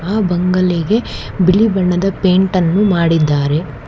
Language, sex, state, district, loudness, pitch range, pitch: Kannada, female, Karnataka, Bangalore, -14 LUFS, 165-195 Hz, 180 Hz